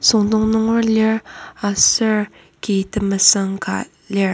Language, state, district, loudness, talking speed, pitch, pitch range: Ao, Nagaland, Kohima, -17 LUFS, 110 wpm, 210 Hz, 195-220 Hz